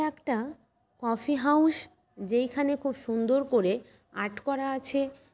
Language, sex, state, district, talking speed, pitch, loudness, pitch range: Bengali, female, West Bengal, Malda, 125 wpm, 270 Hz, -29 LUFS, 235-285 Hz